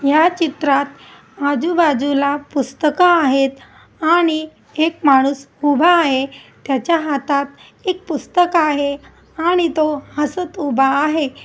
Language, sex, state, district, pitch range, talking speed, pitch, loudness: Marathi, female, Maharashtra, Aurangabad, 280-330 Hz, 110 wpm, 295 Hz, -17 LUFS